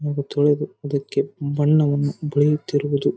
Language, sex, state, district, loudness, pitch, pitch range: Kannada, male, Karnataka, Raichur, -21 LUFS, 145 Hz, 145-150 Hz